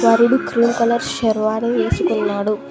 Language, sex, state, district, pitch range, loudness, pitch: Telugu, female, Telangana, Mahabubabad, 215-235 Hz, -17 LUFS, 230 Hz